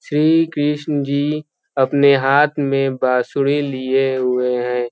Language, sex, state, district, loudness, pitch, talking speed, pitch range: Hindi, male, Uttar Pradesh, Ghazipur, -17 LUFS, 140 Hz, 120 wpm, 130-145 Hz